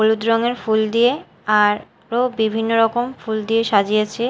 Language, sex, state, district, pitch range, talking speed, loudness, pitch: Bengali, female, Odisha, Malkangiri, 215-235 Hz, 140 wpm, -18 LUFS, 225 Hz